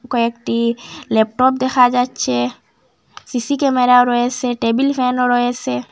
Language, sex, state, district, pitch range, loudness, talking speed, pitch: Bengali, female, Assam, Hailakandi, 235-255 Hz, -16 LUFS, 90 wpm, 245 Hz